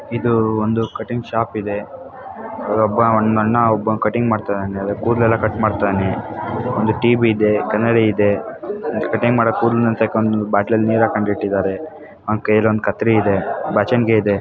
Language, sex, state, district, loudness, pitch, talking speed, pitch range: Kannada, female, Karnataka, Chamarajanagar, -17 LUFS, 110 Hz, 135 wpm, 105-115 Hz